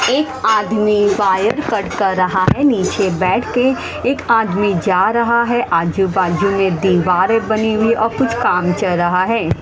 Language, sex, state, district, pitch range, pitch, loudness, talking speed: Hindi, female, Haryana, Rohtak, 185-230 Hz, 205 Hz, -15 LUFS, 170 wpm